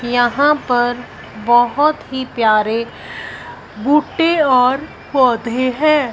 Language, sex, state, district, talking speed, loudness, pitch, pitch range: Hindi, female, Punjab, Fazilka, 90 wpm, -15 LUFS, 255 Hz, 240-290 Hz